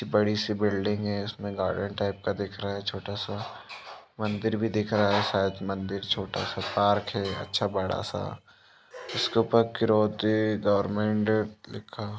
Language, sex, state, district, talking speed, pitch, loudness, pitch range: Hindi, female, Chhattisgarh, Raigarh, 160 wpm, 105 Hz, -28 LUFS, 100-105 Hz